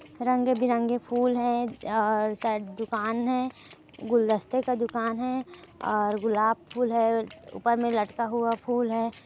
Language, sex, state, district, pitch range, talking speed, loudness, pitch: Hindi, female, Chhattisgarh, Kabirdham, 225-245 Hz, 140 wpm, -27 LUFS, 235 Hz